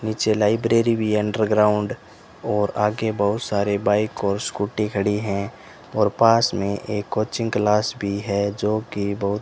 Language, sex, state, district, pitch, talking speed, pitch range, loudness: Hindi, male, Rajasthan, Bikaner, 105 Hz, 160 wpm, 100-110 Hz, -21 LUFS